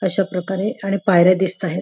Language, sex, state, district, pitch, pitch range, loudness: Marathi, female, Maharashtra, Nagpur, 190 Hz, 185-195 Hz, -18 LUFS